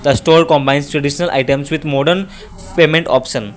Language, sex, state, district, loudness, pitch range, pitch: English, male, Assam, Kamrup Metropolitan, -14 LUFS, 135-165 Hz, 150 Hz